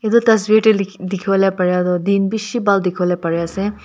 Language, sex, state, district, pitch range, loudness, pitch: Nagamese, female, Nagaland, Kohima, 180-215 Hz, -16 LUFS, 195 Hz